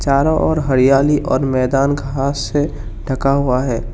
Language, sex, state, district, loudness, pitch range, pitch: Hindi, male, Assam, Kamrup Metropolitan, -16 LUFS, 130-140 Hz, 135 Hz